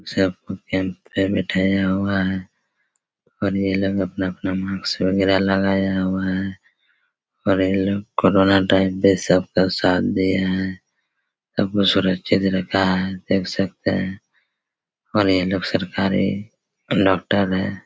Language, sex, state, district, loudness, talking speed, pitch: Hindi, male, Chhattisgarh, Raigarh, -20 LUFS, 130 wpm, 95 Hz